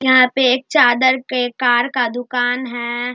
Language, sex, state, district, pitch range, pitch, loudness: Hindi, male, Bihar, Darbhanga, 245-260 Hz, 250 Hz, -16 LUFS